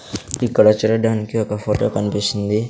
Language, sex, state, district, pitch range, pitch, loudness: Telugu, male, Andhra Pradesh, Sri Satya Sai, 105-110 Hz, 105 Hz, -18 LUFS